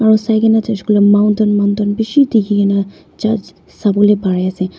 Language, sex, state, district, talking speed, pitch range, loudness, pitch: Nagamese, female, Nagaland, Dimapur, 215 wpm, 200-220 Hz, -13 LUFS, 210 Hz